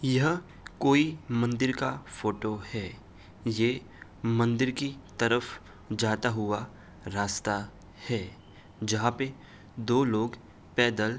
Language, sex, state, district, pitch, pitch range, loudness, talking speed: Hindi, male, Uttar Pradesh, Hamirpur, 110 Hz, 100-125 Hz, -29 LUFS, 105 wpm